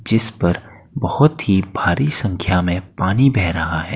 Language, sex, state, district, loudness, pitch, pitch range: Hindi, male, Uttar Pradesh, Etah, -18 LUFS, 95 Hz, 90-115 Hz